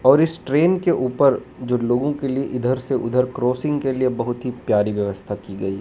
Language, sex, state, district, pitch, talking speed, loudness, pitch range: Hindi, male, Madhya Pradesh, Dhar, 125 Hz, 225 wpm, -21 LUFS, 120-135 Hz